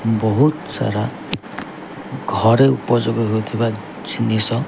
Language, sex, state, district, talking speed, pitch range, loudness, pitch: Odia, male, Odisha, Khordha, 75 wpm, 110-120 Hz, -19 LUFS, 115 Hz